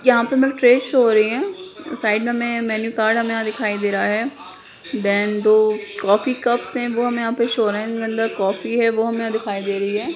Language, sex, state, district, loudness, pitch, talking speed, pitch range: Hindi, female, Bihar, Jahanabad, -19 LUFS, 225 Hz, 250 wpm, 215-240 Hz